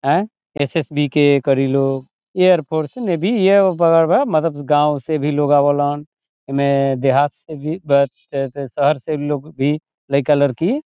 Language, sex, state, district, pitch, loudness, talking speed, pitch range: Bhojpuri, male, Bihar, Saran, 145 Hz, -17 LUFS, 120 wpm, 140-160 Hz